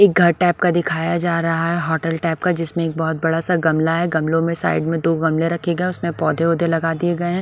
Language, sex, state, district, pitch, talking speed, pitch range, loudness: Hindi, female, Odisha, Sambalpur, 165 Hz, 275 wpm, 165-175 Hz, -19 LUFS